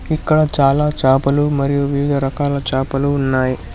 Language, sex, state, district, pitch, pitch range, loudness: Telugu, male, Telangana, Hyderabad, 140 Hz, 135-145 Hz, -16 LUFS